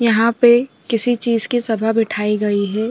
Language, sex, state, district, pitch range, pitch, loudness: Hindi, female, Bihar, Sitamarhi, 215-240 Hz, 230 Hz, -17 LUFS